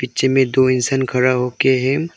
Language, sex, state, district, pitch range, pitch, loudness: Hindi, male, Arunachal Pradesh, Longding, 125-135 Hz, 130 Hz, -16 LUFS